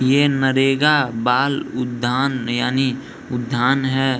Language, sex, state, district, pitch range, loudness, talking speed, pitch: Hindi, male, Bihar, East Champaran, 125-135 Hz, -19 LUFS, 100 wpm, 130 Hz